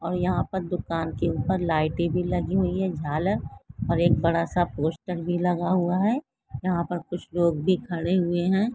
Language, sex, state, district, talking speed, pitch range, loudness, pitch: Hindi, female, Karnataka, Mysore, 185 wpm, 165-185 Hz, -25 LUFS, 175 Hz